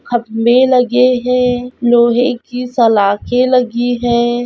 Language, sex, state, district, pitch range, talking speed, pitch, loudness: Hindi, female, Rajasthan, Nagaur, 240-250 Hz, 105 wpm, 245 Hz, -13 LUFS